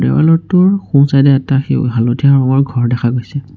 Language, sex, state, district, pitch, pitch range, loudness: Assamese, male, Assam, Sonitpur, 135 Hz, 125-140 Hz, -12 LUFS